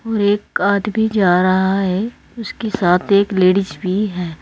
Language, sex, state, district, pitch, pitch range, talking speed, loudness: Hindi, female, Uttar Pradesh, Saharanpur, 200 Hz, 185-210 Hz, 165 wpm, -16 LUFS